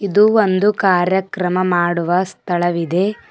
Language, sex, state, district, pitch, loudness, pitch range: Kannada, female, Karnataka, Bidar, 185 Hz, -16 LUFS, 175-200 Hz